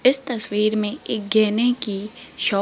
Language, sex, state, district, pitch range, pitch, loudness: Hindi, female, Rajasthan, Jaipur, 210-245 Hz, 215 Hz, -21 LUFS